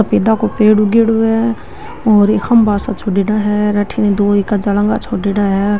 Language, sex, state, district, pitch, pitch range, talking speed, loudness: Marwari, female, Rajasthan, Nagaur, 210 Hz, 205-220 Hz, 125 wpm, -13 LUFS